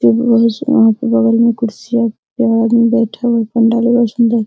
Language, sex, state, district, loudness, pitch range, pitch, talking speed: Hindi, female, Bihar, Araria, -13 LUFS, 230-235 Hz, 230 Hz, 190 wpm